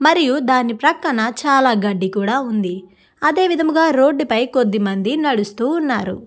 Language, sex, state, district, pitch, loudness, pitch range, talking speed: Telugu, female, Andhra Pradesh, Guntur, 255 Hz, -17 LUFS, 210-300 Hz, 135 wpm